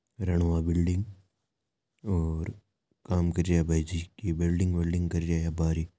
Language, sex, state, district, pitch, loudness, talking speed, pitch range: Marwari, male, Rajasthan, Nagaur, 85 Hz, -29 LUFS, 160 wpm, 85-95 Hz